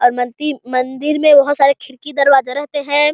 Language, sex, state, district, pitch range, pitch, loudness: Hindi, female, Chhattisgarh, Sarguja, 260-295 Hz, 280 Hz, -14 LUFS